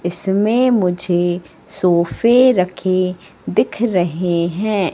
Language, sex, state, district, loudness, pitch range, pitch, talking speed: Hindi, female, Madhya Pradesh, Katni, -16 LUFS, 175-205 Hz, 185 Hz, 85 wpm